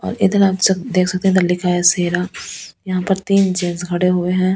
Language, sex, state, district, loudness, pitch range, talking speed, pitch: Hindi, female, Delhi, New Delhi, -16 LUFS, 180-190 Hz, 210 wpm, 185 Hz